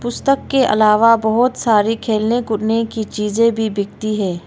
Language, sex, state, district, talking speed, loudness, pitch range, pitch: Hindi, female, Arunachal Pradesh, Longding, 160 wpm, -16 LUFS, 215-230 Hz, 220 Hz